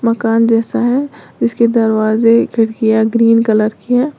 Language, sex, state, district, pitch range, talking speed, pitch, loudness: Hindi, female, Uttar Pradesh, Lalitpur, 225-235 Hz, 145 wpm, 230 Hz, -13 LUFS